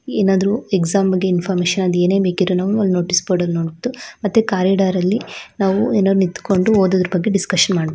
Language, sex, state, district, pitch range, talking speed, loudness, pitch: Kannada, female, Karnataka, Shimoga, 180-200 Hz, 160 wpm, -17 LUFS, 190 Hz